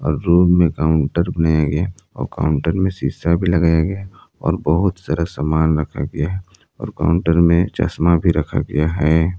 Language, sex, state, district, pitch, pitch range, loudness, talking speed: Hindi, male, Jharkhand, Palamu, 85 Hz, 80-90 Hz, -18 LUFS, 165 wpm